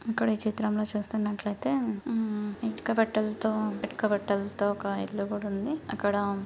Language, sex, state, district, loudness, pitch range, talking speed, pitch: Telugu, female, Telangana, Karimnagar, -30 LUFS, 205-220 Hz, 120 wpm, 210 Hz